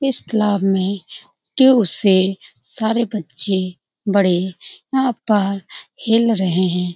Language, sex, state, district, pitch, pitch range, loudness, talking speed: Hindi, female, Bihar, Saran, 200 Hz, 185-225 Hz, -17 LUFS, 110 wpm